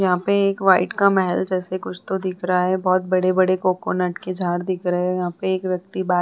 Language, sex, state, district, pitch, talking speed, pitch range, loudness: Hindi, female, Bihar, Vaishali, 185 Hz, 250 wpm, 180-190 Hz, -21 LUFS